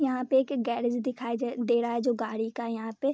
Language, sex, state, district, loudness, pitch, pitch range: Hindi, female, Bihar, Vaishali, -29 LUFS, 240 Hz, 235-255 Hz